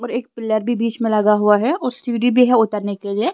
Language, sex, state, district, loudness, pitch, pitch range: Hindi, female, Himachal Pradesh, Shimla, -18 LUFS, 230 Hz, 210-245 Hz